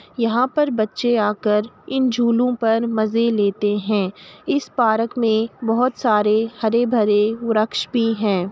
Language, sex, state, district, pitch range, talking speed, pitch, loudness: Hindi, female, Uttar Pradesh, Jalaun, 210-240 Hz, 140 wpm, 225 Hz, -19 LUFS